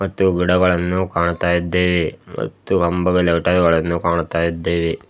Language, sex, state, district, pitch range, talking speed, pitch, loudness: Kannada, male, Karnataka, Bidar, 85-90 Hz, 80 wpm, 85 Hz, -18 LUFS